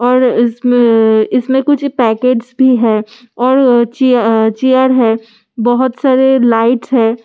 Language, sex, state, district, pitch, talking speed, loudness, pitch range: Hindi, female, Delhi, New Delhi, 240 Hz, 130 wpm, -11 LUFS, 225-260 Hz